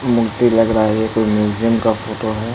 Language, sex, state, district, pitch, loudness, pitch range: Hindi, male, Bihar, East Champaran, 110 Hz, -16 LUFS, 110-115 Hz